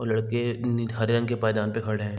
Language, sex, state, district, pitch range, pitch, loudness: Hindi, male, Chhattisgarh, Raigarh, 110-120 Hz, 115 Hz, -26 LUFS